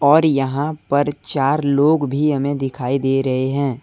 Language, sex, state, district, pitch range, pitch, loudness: Hindi, male, Jharkhand, Deoghar, 135-145 Hz, 140 Hz, -18 LUFS